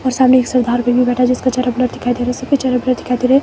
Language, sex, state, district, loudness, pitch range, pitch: Hindi, female, Himachal Pradesh, Shimla, -15 LUFS, 250-255 Hz, 250 Hz